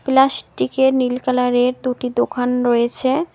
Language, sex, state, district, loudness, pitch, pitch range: Bengali, female, West Bengal, Cooch Behar, -18 LUFS, 250 Hz, 245-265 Hz